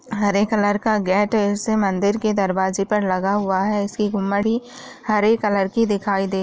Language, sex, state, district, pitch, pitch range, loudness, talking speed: Hindi, female, Chhattisgarh, Raigarh, 205 Hz, 195-215 Hz, -20 LUFS, 185 wpm